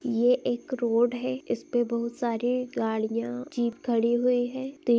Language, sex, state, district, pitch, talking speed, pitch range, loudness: Hindi, female, Chhattisgarh, Balrampur, 240 Hz, 180 wpm, 235-250 Hz, -27 LUFS